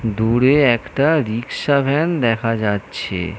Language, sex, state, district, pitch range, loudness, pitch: Bengali, male, West Bengal, North 24 Parganas, 110-140 Hz, -17 LUFS, 115 Hz